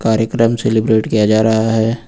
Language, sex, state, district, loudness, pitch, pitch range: Hindi, male, Uttar Pradesh, Lucknow, -14 LUFS, 110 Hz, 110-115 Hz